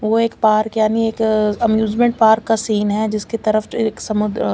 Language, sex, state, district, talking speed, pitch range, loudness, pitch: Hindi, female, Chandigarh, Chandigarh, 210 wpm, 215-225 Hz, -17 LUFS, 220 Hz